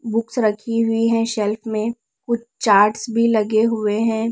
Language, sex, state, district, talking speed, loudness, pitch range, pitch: Hindi, female, Bihar, West Champaran, 165 wpm, -19 LUFS, 215-230 Hz, 225 Hz